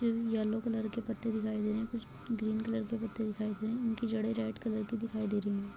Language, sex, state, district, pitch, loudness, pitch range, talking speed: Hindi, female, Bihar, Kishanganj, 220 Hz, -35 LUFS, 215-230 Hz, 270 wpm